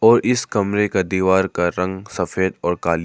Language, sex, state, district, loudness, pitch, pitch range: Hindi, male, Arunachal Pradesh, Papum Pare, -19 LUFS, 95 Hz, 90-105 Hz